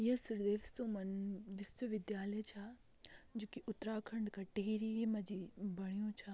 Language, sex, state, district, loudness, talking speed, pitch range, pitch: Garhwali, female, Uttarakhand, Tehri Garhwal, -43 LUFS, 140 wpm, 200-220 Hz, 210 Hz